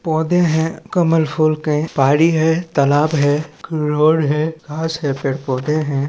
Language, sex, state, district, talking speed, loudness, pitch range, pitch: Hindi, male, Chhattisgarh, Balrampur, 150 wpm, -17 LUFS, 145-160 Hz, 155 Hz